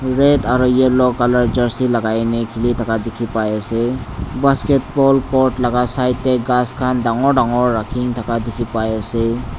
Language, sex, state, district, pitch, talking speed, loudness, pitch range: Nagamese, male, Nagaland, Dimapur, 125 Hz, 145 wpm, -16 LUFS, 115-130 Hz